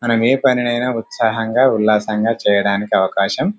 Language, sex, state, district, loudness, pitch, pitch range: Telugu, male, Telangana, Karimnagar, -16 LUFS, 115 Hz, 110-125 Hz